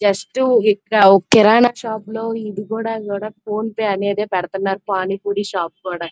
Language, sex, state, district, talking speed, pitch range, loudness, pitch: Telugu, female, Andhra Pradesh, Krishna, 155 wpm, 195-220 Hz, -18 LUFS, 205 Hz